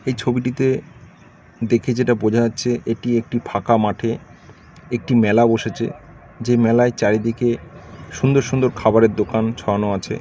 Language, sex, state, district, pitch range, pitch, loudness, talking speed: Bengali, male, West Bengal, North 24 Parganas, 110-120 Hz, 115 Hz, -19 LUFS, 130 wpm